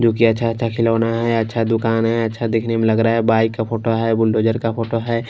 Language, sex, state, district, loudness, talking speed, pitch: Hindi, male, Punjab, Kapurthala, -18 LUFS, 250 wpm, 115 Hz